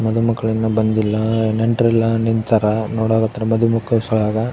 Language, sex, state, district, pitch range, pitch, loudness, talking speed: Kannada, male, Karnataka, Raichur, 110-115 Hz, 110 Hz, -17 LUFS, 160 wpm